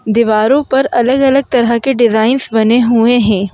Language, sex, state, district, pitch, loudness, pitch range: Hindi, female, Madhya Pradesh, Bhopal, 240 Hz, -11 LUFS, 225-260 Hz